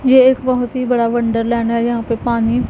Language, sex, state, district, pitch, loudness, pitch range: Hindi, female, Punjab, Pathankot, 240 Hz, -16 LUFS, 230-255 Hz